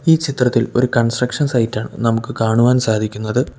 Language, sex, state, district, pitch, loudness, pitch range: Malayalam, male, Kerala, Kollam, 120 Hz, -17 LUFS, 115-125 Hz